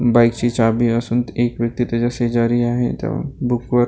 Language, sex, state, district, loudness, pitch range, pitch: Marathi, male, Maharashtra, Gondia, -19 LUFS, 115-120 Hz, 120 Hz